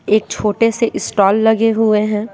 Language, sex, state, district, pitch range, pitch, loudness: Hindi, female, Bihar, West Champaran, 210-225 Hz, 215 Hz, -15 LUFS